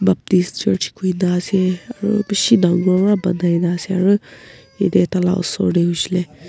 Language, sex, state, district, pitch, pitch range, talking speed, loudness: Nagamese, female, Nagaland, Kohima, 180 Hz, 175-190 Hz, 175 wpm, -17 LUFS